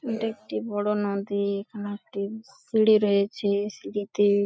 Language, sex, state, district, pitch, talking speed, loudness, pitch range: Bengali, female, West Bengal, Paschim Medinipur, 205 Hz, 120 wpm, -26 LUFS, 200-220 Hz